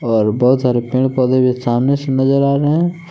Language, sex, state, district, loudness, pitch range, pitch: Hindi, male, Jharkhand, Palamu, -15 LUFS, 125-140 Hz, 130 Hz